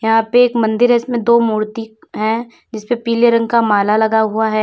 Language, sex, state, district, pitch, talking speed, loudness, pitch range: Hindi, female, Uttar Pradesh, Lalitpur, 225 Hz, 235 wpm, -15 LUFS, 220-235 Hz